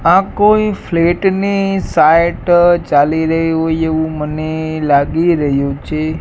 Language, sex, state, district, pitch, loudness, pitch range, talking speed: Gujarati, male, Gujarat, Gandhinagar, 165 Hz, -13 LUFS, 155-175 Hz, 125 wpm